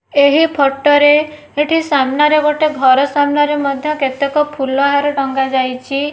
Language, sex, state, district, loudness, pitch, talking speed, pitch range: Odia, female, Odisha, Nuapada, -14 LUFS, 290 Hz, 125 wpm, 275-300 Hz